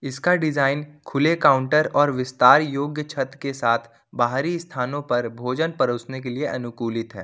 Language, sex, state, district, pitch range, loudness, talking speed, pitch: Hindi, male, Jharkhand, Ranchi, 125-150 Hz, -22 LUFS, 155 wpm, 135 Hz